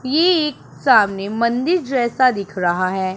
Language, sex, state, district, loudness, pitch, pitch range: Hindi, male, Punjab, Pathankot, -18 LUFS, 235 Hz, 195-275 Hz